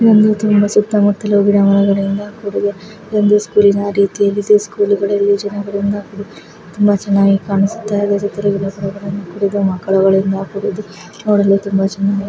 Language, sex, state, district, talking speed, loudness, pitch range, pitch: Kannada, female, Karnataka, Raichur, 110 wpm, -14 LUFS, 195-205 Hz, 200 Hz